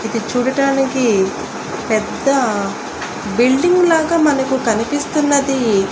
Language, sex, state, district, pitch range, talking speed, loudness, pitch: Telugu, female, Andhra Pradesh, Annamaya, 220-285 Hz, 70 wpm, -16 LUFS, 265 Hz